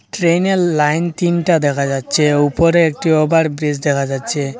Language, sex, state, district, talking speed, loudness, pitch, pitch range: Bengali, male, Assam, Hailakandi, 145 wpm, -15 LUFS, 155 Hz, 145-170 Hz